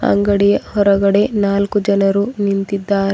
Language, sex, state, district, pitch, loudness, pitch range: Kannada, female, Karnataka, Bidar, 200 Hz, -15 LUFS, 200-205 Hz